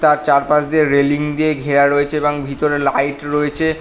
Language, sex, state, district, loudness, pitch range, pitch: Bengali, male, West Bengal, North 24 Parganas, -16 LUFS, 140-150 Hz, 145 Hz